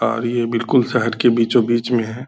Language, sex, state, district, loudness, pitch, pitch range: Hindi, male, Bihar, Purnia, -17 LUFS, 120 Hz, 115-120 Hz